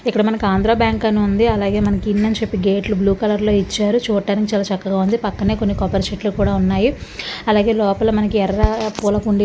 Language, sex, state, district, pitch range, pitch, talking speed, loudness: Telugu, female, Andhra Pradesh, Visakhapatnam, 200-220 Hz, 210 Hz, 190 wpm, -17 LUFS